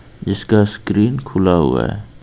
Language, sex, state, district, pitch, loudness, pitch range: Hindi, male, Jharkhand, Ranchi, 105 Hz, -16 LUFS, 95-110 Hz